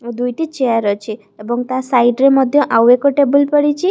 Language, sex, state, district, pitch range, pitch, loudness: Odia, female, Odisha, Khordha, 240-285 Hz, 255 Hz, -14 LUFS